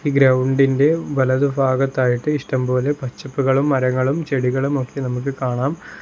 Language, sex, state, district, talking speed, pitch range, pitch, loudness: Malayalam, male, Kerala, Kollam, 90 wpm, 130-140 Hz, 135 Hz, -19 LUFS